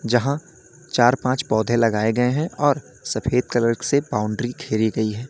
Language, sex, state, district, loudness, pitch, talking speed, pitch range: Hindi, male, Uttar Pradesh, Lalitpur, -21 LUFS, 125 Hz, 170 wpm, 115-140 Hz